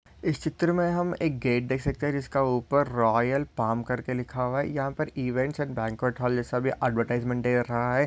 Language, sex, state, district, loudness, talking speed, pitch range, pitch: Hindi, male, Maharashtra, Solapur, -27 LUFS, 210 wpm, 125-140 Hz, 130 Hz